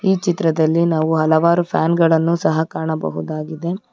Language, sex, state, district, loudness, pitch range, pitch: Kannada, female, Karnataka, Bangalore, -17 LUFS, 160-170 Hz, 160 Hz